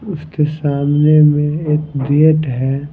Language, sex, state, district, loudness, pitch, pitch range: Hindi, male, Himachal Pradesh, Shimla, -14 LUFS, 150 Hz, 145-155 Hz